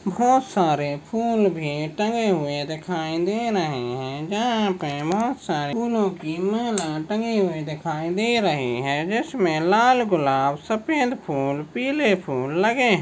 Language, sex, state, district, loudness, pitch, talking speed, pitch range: Hindi, male, Maharashtra, Sindhudurg, -23 LUFS, 185 Hz, 145 wpm, 150-225 Hz